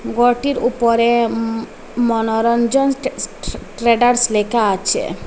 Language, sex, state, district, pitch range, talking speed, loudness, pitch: Bengali, female, Assam, Hailakandi, 225-245 Hz, 90 wpm, -16 LUFS, 235 Hz